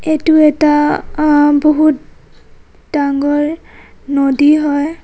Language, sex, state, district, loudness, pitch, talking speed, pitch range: Assamese, female, Assam, Kamrup Metropolitan, -12 LUFS, 295 Hz, 85 wpm, 290-305 Hz